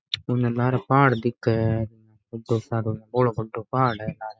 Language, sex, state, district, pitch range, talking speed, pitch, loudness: Rajasthani, male, Rajasthan, Nagaur, 110-125 Hz, 165 wpm, 115 Hz, -24 LUFS